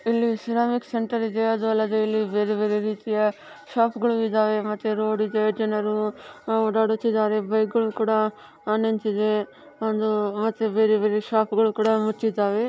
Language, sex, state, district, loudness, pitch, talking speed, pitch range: Kannada, female, Karnataka, Dharwad, -23 LUFS, 220 Hz, 130 wpm, 215-225 Hz